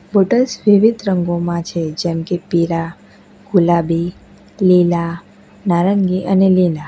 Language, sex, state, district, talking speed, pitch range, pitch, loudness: Gujarati, female, Gujarat, Valsad, 105 wpm, 170-200 Hz, 180 Hz, -16 LUFS